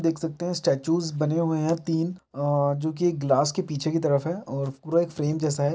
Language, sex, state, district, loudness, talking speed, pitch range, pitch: Maithili, male, Bihar, Araria, -26 LUFS, 250 wpm, 145-170 Hz, 160 Hz